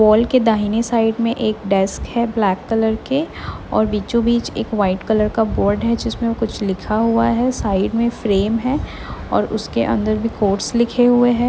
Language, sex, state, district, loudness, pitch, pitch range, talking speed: Hindi, female, Chhattisgarh, Bilaspur, -18 LUFS, 225 Hz, 210-235 Hz, 195 wpm